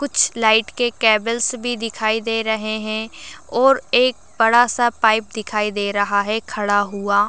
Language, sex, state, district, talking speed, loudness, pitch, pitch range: Hindi, female, Uttar Pradesh, Gorakhpur, 155 wpm, -18 LUFS, 220 Hz, 210-235 Hz